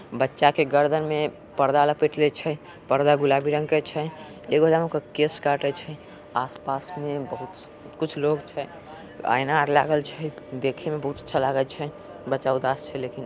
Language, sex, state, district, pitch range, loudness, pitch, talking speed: Angika, male, Bihar, Samastipur, 135-150 Hz, -24 LUFS, 145 Hz, 165 wpm